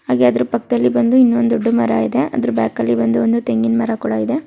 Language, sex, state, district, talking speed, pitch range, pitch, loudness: Kannada, female, Karnataka, Chamarajanagar, 175 wpm, 115-125 Hz, 120 Hz, -16 LUFS